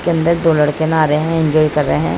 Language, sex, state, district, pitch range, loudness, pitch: Hindi, female, Bihar, Saran, 150-165 Hz, -14 LUFS, 155 Hz